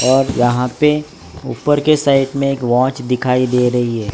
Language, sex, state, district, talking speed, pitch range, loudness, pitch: Hindi, male, Gujarat, Valsad, 190 wpm, 125-140 Hz, -15 LUFS, 130 Hz